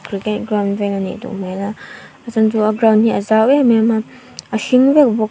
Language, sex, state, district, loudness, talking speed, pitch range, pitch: Mizo, female, Mizoram, Aizawl, -15 LUFS, 235 wpm, 205-230 Hz, 220 Hz